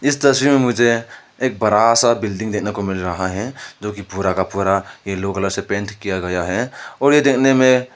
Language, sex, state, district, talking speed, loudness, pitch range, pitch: Hindi, male, Arunachal Pradesh, Lower Dibang Valley, 220 wpm, -18 LUFS, 95-125 Hz, 105 Hz